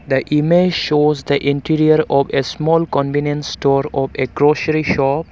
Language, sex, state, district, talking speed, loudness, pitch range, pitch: English, male, Arunachal Pradesh, Longding, 160 wpm, -16 LUFS, 140-155 Hz, 145 Hz